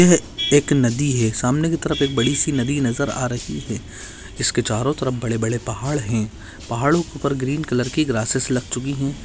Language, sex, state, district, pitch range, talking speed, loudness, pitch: Hindi, male, Maharashtra, Aurangabad, 115-145 Hz, 210 wpm, -21 LUFS, 130 Hz